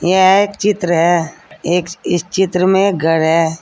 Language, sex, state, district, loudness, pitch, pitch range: Hindi, female, Uttar Pradesh, Saharanpur, -14 LUFS, 175 Hz, 165-190 Hz